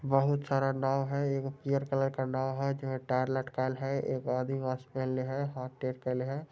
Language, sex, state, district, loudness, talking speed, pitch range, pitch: Hindi, male, Bihar, Muzaffarpur, -33 LUFS, 185 wpm, 130-135 Hz, 135 Hz